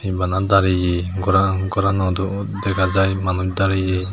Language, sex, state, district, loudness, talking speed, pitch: Chakma, male, Tripura, Unakoti, -19 LUFS, 115 wpm, 95 Hz